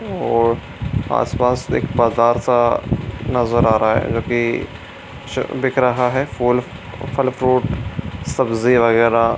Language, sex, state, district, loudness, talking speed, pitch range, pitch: Hindi, male, Bihar, Supaul, -18 LUFS, 135 wpm, 115-125 Hz, 120 Hz